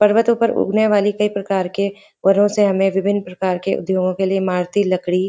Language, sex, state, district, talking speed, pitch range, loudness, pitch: Hindi, female, Uttarakhand, Uttarkashi, 215 wpm, 185-205 Hz, -18 LUFS, 195 Hz